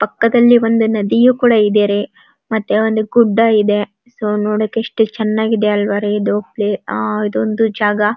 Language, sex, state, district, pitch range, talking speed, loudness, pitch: Kannada, female, Karnataka, Dharwad, 205-225 Hz, 125 wpm, -14 LUFS, 215 Hz